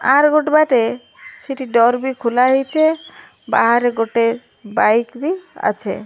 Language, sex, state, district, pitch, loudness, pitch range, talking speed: Odia, female, Odisha, Malkangiri, 250 Hz, -16 LUFS, 235-300 Hz, 130 wpm